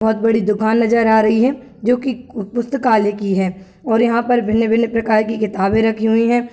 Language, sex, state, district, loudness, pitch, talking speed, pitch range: Hindi, male, Uttar Pradesh, Ghazipur, -16 LUFS, 225 Hz, 200 wpm, 215-235 Hz